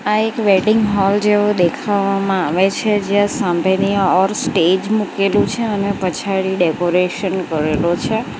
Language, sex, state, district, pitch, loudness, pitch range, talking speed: Gujarati, female, Gujarat, Valsad, 195 Hz, -16 LUFS, 185-210 Hz, 135 wpm